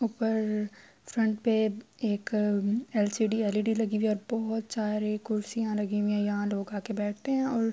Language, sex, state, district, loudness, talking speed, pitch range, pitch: Urdu, female, Andhra Pradesh, Anantapur, -29 LUFS, 170 wpm, 210-225 Hz, 215 Hz